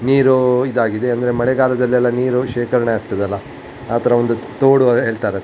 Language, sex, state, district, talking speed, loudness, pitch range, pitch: Kannada, male, Karnataka, Dakshina Kannada, 155 wpm, -16 LUFS, 115-125 Hz, 125 Hz